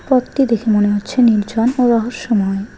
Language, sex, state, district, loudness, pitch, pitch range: Bengali, female, West Bengal, Alipurduar, -15 LUFS, 225 Hz, 205-245 Hz